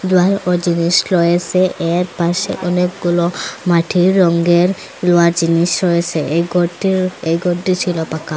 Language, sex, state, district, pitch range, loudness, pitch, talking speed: Bengali, female, Assam, Hailakandi, 170-180 Hz, -15 LUFS, 175 Hz, 120 wpm